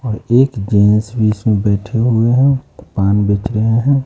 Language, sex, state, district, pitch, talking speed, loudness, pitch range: Hindi, male, Bihar, West Champaran, 110 Hz, 175 wpm, -14 LUFS, 105-120 Hz